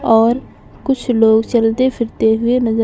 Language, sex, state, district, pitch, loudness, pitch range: Hindi, female, Maharashtra, Mumbai Suburban, 230 Hz, -15 LUFS, 225-245 Hz